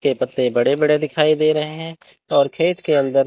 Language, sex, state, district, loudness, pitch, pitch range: Hindi, male, Chandigarh, Chandigarh, -18 LUFS, 150 Hz, 140-155 Hz